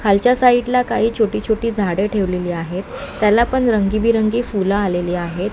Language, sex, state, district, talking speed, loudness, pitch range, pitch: Marathi, male, Maharashtra, Mumbai Suburban, 165 wpm, -17 LUFS, 195-230 Hz, 210 Hz